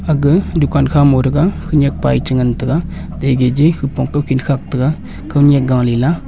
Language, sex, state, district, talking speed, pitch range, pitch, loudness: Wancho, male, Arunachal Pradesh, Longding, 180 wpm, 130-150 Hz, 140 Hz, -14 LUFS